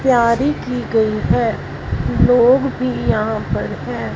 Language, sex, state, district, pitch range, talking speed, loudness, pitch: Hindi, female, Punjab, Fazilka, 235-260 Hz, 130 wpm, -17 LUFS, 250 Hz